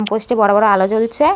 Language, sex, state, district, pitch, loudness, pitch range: Bengali, female, West Bengal, North 24 Parganas, 215 Hz, -14 LUFS, 205-230 Hz